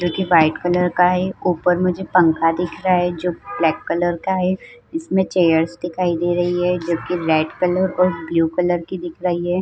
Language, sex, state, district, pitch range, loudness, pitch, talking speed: Hindi, female, Uttar Pradesh, Muzaffarnagar, 170-180 Hz, -19 LUFS, 175 Hz, 200 wpm